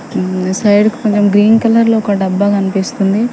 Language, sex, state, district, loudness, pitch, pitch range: Telugu, female, Telangana, Mahabubabad, -12 LUFS, 205 Hz, 195-220 Hz